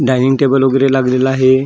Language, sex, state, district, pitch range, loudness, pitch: Marathi, male, Maharashtra, Gondia, 130-135 Hz, -12 LUFS, 130 Hz